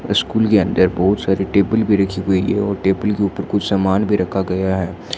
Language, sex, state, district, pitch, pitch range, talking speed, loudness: Hindi, male, Rajasthan, Bikaner, 95 Hz, 95-105 Hz, 230 wpm, -17 LUFS